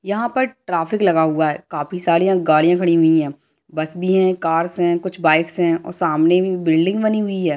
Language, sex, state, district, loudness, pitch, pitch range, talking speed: Hindi, male, Bihar, Kishanganj, -18 LUFS, 175 Hz, 160-185 Hz, 245 wpm